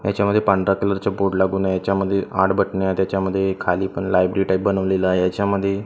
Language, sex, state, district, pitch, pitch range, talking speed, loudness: Marathi, male, Maharashtra, Gondia, 95 Hz, 95-100 Hz, 185 wpm, -20 LUFS